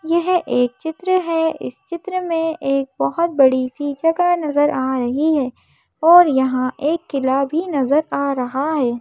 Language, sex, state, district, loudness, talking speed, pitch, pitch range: Hindi, female, Madhya Pradesh, Bhopal, -18 LUFS, 165 wpm, 295 Hz, 265-330 Hz